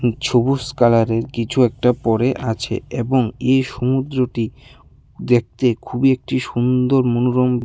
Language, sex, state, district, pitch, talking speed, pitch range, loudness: Bengali, male, Tripura, West Tripura, 125 Hz, 115 wpm, 120-130 Hz, -18 LUFS